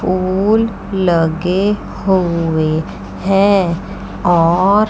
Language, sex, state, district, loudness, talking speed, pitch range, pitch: Hindi, female, Chandigarh, Chandigarh, -15 LUFS, 60 wpm, 170-195 Hz, 185 Hz